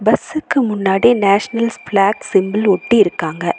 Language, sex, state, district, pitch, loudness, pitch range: Tamil, female, Tamil Nadu, Nilgiris, 205 Hz, -15 LUFS, 195-230 Hz